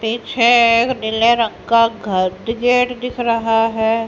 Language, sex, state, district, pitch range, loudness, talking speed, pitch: Hindi, female, Haryana, Jhajjar, 225-240 Hz, -16 LUFS, 135 wpm, 230 Hz